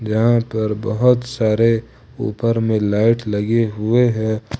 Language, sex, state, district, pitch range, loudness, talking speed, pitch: Hindi, male, Jharkhand, Ranchi, 110-115 Hz, -18 LUFS, 130 wpm, 110 Hz